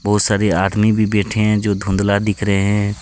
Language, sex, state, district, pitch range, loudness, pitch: Hindi, male, Jharkhand, Deoghar, 100-105 Hz, -16 LUFS, 105 Hz